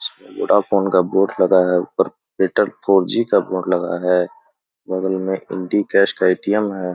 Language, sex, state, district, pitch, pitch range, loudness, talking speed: Hindi, male, Bihar, Begusarai, 95 Hz, 90-100 Hz, -18 LUFS, 170 wpm